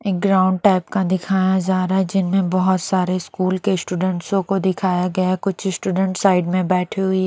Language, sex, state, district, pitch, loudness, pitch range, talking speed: Hindi, female, Bihar, Katihar, 185 Hz, -19 LUFS, 185-190 Hz, 200 wpm